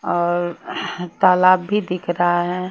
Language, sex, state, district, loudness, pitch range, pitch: Hindi, female, Himachal Pradesh, Shimla, -19 LUFS, 175-185 Hz, 180 Hz